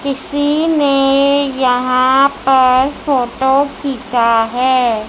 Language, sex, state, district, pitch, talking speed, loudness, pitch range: Hindi, female, Madhya Pradesh, Dhar, 265 Hz, 80 wpm, -13 LUFS, 255-280 Hz